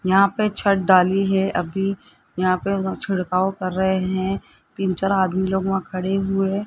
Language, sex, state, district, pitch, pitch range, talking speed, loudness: Hindi, male, Rajasthan, Jaipur, 190 Hz, 185-195 Hz, 180 wpm, -21 LUFS